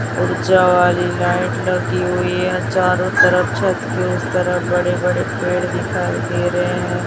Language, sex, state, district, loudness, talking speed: Hindi, female, Chhattisgarh, Raipur, -17 LUFS, 160 wpm